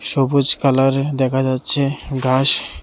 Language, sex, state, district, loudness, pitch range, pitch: Bengali, male, Tripura, West Tripura, -16 LUFS, 130-140 Hz, 135 Hz